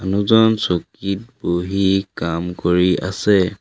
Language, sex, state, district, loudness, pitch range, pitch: Assamese, male, Assam, Sonitpur, -18 LUFS, 90-100 Hz, 95 Hz